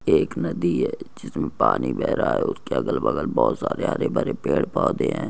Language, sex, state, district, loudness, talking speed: Hindi, male, Andhra Pradesh, Krishna, -23 LUFS, 205 wpm